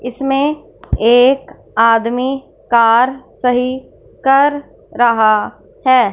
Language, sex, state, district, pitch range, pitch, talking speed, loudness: Hindi, female, Punjab, Fazilka, 235-270 Hz, 250 Hz, 80 wpm, -14 LUFS